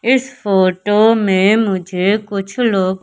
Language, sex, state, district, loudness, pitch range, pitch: Hindi, male, Madhya Pradesh, Katni, -15 LUFS, 190-225 Hz, 200 Hz